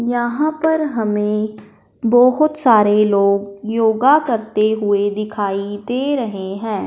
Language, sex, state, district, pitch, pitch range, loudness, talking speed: Hindi, male, Punjab, Fazilka, 220 Hz, 205-245 Hz, -17 LUFS, 115 wpm